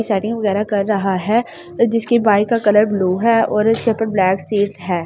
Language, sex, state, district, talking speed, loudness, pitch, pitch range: Hindi, male, Delhi, New Delhi, 200 wpm, -16 LUFS, 210 Hz, 195-225 Hz